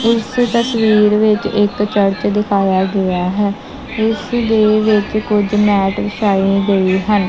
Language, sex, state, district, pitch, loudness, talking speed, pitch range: Punjabi, male, Punjab, Kapurthala, 210 Hz, -14 LUFS, 130 wpm, 200-215 Hz